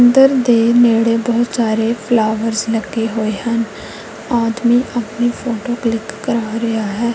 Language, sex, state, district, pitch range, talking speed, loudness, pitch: Punjabi, female, Punjab, Kapurthala, 225-240 Hz, 135 wpm, -16 LUFS, 230 Hz